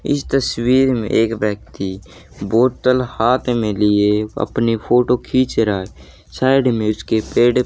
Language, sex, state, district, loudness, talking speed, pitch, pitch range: Hindi, male, Haryana, Jhajjar, -17 LUFS, 140 wpm, 115 Hz, 105-125 Hz